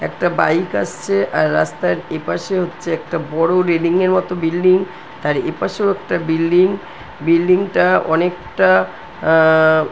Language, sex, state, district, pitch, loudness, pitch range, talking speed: Bengali, female, West Bengal, North 24 Parganas, 170 Hz, -16 LUFS, 160-180 Hz, 140 wpm